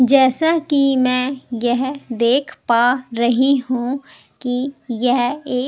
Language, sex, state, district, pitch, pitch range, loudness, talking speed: Hindi, female, Delhi, New Delhi, 255 Hz, 245-275 Hz, -18 LUFS, 125 wpm